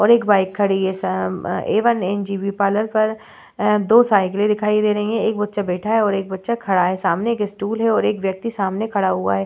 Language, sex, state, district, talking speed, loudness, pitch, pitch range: Hindi, female, Bihar, Vaishali, 245 wpm, -19 LUFS, 205 Hz, 190-220 Hz